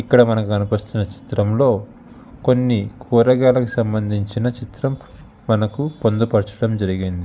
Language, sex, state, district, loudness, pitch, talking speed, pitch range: Telugu, male, Telangana, Hyderabad, -19 LUFS, 115 Hz, 90 wpm, 105-125 Hz